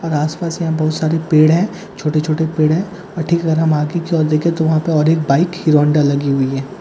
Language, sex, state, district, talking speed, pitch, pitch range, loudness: Hindi, male, Bihar, Katihar, 265 wpm, 160 Hz, 155-170 Hz, -16 LUFS